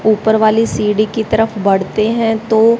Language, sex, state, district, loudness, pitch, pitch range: Hindi, female, Haryana, Charkhi Dadri, -14 LUFS, 220 Hz, 215-225 Hz